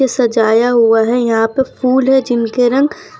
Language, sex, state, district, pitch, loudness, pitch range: Hindi, female, Gujarat, Valsad, 245 Hz, -13 LUFS, 230-265 Hz